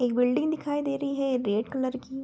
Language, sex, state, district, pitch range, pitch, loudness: Hindi, female, Bihar, Begusarai, 250-280 Hz, 265 Hz, -28 LUFS